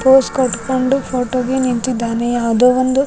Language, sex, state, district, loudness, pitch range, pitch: Kannada, female, Karnataka, Raichur, -16 LUFS, 245-260 Hz, 255 Hz